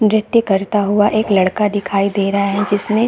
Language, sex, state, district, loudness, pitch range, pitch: Hindi, female, Chhattisgarh, Bastar, -16 LUFS, 200-215 Hz, 205 Hz